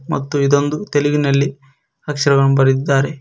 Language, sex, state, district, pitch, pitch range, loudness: Kannada, male, Karnataka, Koppal, 140 Hz, 135-145 Hz, -16 LUFS